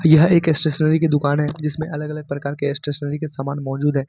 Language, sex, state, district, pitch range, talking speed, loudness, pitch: Hindi, male, Jharkhand, Ranchi, 145-155 Hz, 235 wpm, -19 LUFS, 150 Hz